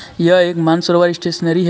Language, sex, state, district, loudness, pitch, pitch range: Hindi, male, Jharkhand, Deoghar, -14 LUFS, 175 Hz, 170-175 Hz